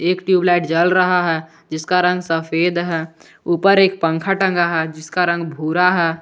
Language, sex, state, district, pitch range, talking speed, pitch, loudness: Hindi, male, Jharkhand, Garhwa, 165-180 Hz, 175 wpm, 170 Hz, -17 LUFS